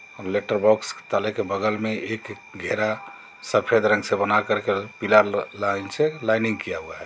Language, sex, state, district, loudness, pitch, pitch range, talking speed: Hindi, male, Jharkhand, Garhwa, -23 LUFS, 110 Hz, 105-110 Hz, 170 wpm